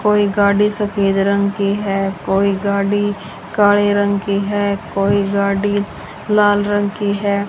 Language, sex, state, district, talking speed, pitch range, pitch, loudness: Hindi, female, Haryana, Charkhi Dadri, 145 wpm, 200-205 Hz, 200 Hz, -16 LUFS